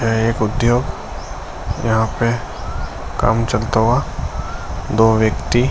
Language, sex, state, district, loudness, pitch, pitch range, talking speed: Hindi, male, Uttar Pradesh, Gorakhpur, -18 LUFS, 110 Hz, 80-115 Hz, 115 wpm